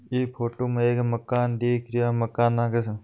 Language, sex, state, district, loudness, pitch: Marwari, male, Rajasthan, Nagaur, -25 LUFS, 120 Hz